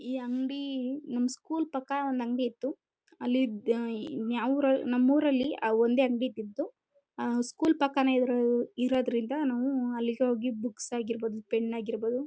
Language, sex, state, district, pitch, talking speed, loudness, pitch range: Kannada, female, Karnataka, Chamarajanagar, 250 Hz, 140 wpm, -30 LUFS, 240-270 Hz